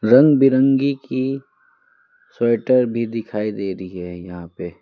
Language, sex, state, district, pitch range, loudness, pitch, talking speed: Hindi, male, West Bengal, Alipurduar, 100-135 Hz, -18 LUFS, 120 Hz, 135 wpm